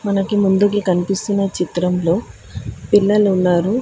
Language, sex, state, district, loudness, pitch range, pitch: Telugu, female, Telangana, Hyderabad, -17 LUFS, 180-205 Hz, 195 Hz